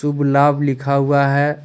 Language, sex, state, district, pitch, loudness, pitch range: Hindi, male, Jharkhand, Deoghar, 140 Hz, -16 LUFS, 140-145 Hz